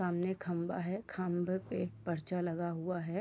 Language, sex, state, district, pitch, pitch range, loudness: Hindi, female, Bihar, Sitamarhi, 180 Hz, 175-185 Hz, -37 LUFS